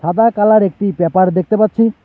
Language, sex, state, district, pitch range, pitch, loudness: Bengali, male, West Bengal, Alipurduar, 185-215 Hz, 205 Hz, -13 LUFS